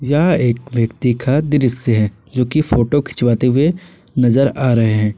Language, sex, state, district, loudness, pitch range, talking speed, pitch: Hindi, male, Jharkhand, Garhwa, -16 LUFS, 115-140 Hz, 175 wpm, 125 Hz